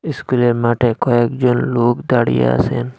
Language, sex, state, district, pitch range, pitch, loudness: Bengali, male, Assam, Hailakandi, 120-125 Hz, 120 Hz, -16 LUFS